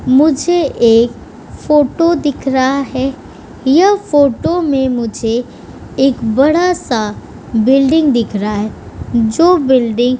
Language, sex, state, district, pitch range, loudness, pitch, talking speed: Hindi, female, Uttar Pradesh, Budaun, 235-300 Hz, -13 LUFS, 265 Hz, 110 wpm